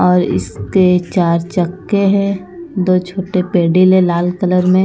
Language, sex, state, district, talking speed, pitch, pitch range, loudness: Hindi, female, Punjab, Pathankot, 150 wpm, 180 Hz, 175-185 Hz, -14 LUFS